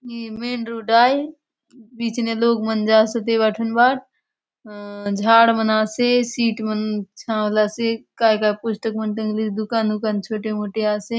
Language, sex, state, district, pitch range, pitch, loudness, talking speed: Halbi, female, Chhattisgarh, Bastar, 215-235 Hz, 225 Hz, -20 LUFS, 160 wpm